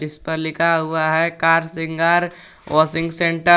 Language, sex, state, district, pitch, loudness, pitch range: Hindi, male, Jharkhand, Garhwa, 165 Hz, -19 LUFS, 160-170 Hz